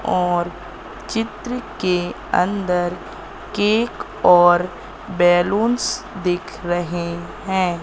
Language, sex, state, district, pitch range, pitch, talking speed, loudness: Hindi, female, Madhya Pradesh, Katni, 175-205 Hz, 180 Hz, 75 wpm, -20 LUFS